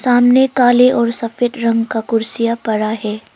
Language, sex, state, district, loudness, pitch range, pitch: Hindi, female, Arunachal Pradesh, Longding, -15 LUFS, 225-245 Hz, 230 Hz